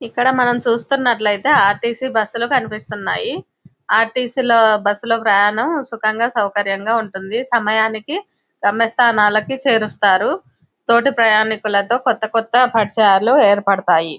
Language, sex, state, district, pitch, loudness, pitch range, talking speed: Telugu, female, Telangana, Nalgonda, 225 Hz, -16 LUFS, 210-245 Hz, 95 wpm